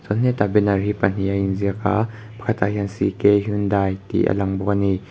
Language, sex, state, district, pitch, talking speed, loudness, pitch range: Mizo, male, Mizoram, Aizawl, 100 Hz, 245 wpm, -21 LUFS, 95-105 Hz